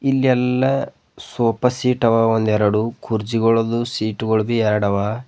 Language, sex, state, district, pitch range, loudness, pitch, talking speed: Kannada, male, Karnataka, Bidar, 110-125 Hz, -19 LUFS, 115 Hz, 135 wpm